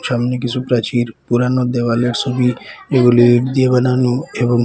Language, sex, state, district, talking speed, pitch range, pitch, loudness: Bengali, male, Assam, Hailakandi, 130 wpm, 120-125 Hz, 125 Hz, -15 LUFS